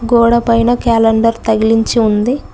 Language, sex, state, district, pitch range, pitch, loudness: Telugu, female, Telangana, Mahabubabad, 225-235 Hz, 230 Hz, -12 LUFS